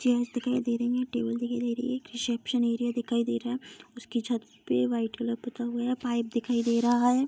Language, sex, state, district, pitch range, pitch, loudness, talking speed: Hindi, female, Bihar, East Champaran, 235-245 Hz, 240 Hz, -29 LUFS, 230 wpm